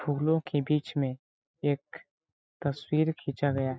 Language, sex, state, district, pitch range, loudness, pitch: Hindi, male, Chhattisgarh, Balrampur, 140-150 Hz, -30 LUFS, 145 Hz